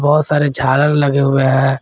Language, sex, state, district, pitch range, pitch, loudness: Hindi, male, Jharkhand, Garhwa, 135-145 Hz, 140 Hz, -14 LUFS